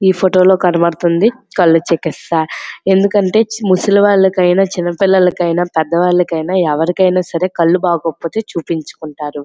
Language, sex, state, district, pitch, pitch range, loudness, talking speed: Telugu, female, Andhra Pradesh, Srikakulam, 180 Hz, 170-190 Hz, -13 LUFS, 135 wpm